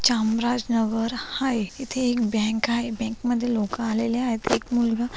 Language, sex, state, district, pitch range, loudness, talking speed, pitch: Marathi, female, Maharashtra, Solapur, 225-245 Hz, -24 LUFS, 160 wpm, 235 Hz